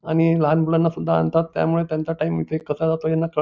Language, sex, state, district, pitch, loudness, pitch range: Marathi, male, Maharashtra, Nagpur, 160 Hz, -21 LUFS, 150-165 Hz